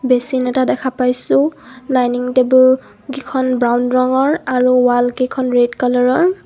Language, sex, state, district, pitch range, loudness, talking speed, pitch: Assamese, female, Assam, Kamrup Metropolitan, 250-260 Hz, -15 LUFS, 120 wpm, 255 Hz